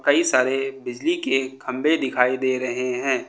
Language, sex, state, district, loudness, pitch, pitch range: Hindi, male, Uttar Pradesh, Lucknow, -22 LUFS, 130 Hz, 125-135 Hz